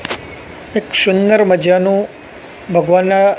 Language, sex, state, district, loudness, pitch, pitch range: Gujarati, male, Gujarat, Gandhinagar, -13 LUFS, 195 Hz, 180-200 Hz